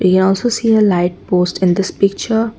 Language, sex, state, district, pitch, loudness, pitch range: English, female, Assam, Kamrup Metropolitan, 195 Hz, -15 LUFS, 185-220 Hz